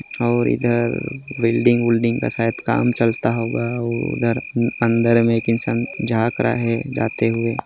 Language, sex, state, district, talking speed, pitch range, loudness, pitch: Hindi, male, Chhattisgarh, Jashpur, 155 wpm, 115-120 Hz, -19 LUFS, 115 Hz